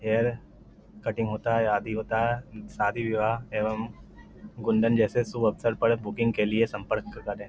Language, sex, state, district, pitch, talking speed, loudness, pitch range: Hindi, male, Bihar, Lakhisarai, 110 Hz, 160 wpm, -27 LUFS, 110-115 Hz